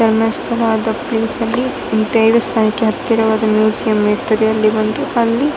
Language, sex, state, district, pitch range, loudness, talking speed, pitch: Kannada, female, Karnataka, Dakshina Kannada, 220-230 Hz, -15 LUFS, 150 wpm, 225 Hz